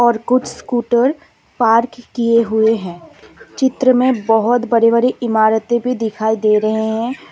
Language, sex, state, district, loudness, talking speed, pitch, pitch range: Hindi, female, Assam, Kamrup Metropolitan, -15 LUFS, 150 wpm, 235 Hz, 220-245 Hz